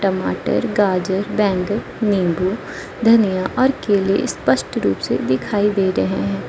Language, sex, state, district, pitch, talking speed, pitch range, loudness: Hindi, female, Arunachal Pradesh, Lower Dibang Valley, 195 Hz, 130 wpm, 185-210 Hz, -18 LUFS